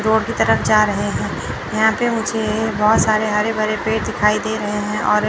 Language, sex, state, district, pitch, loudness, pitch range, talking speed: Hindi, male, Chandigarh, Chandigarh, 215 Hz, -18 LUFS, 210-220 Hz, 215 wpm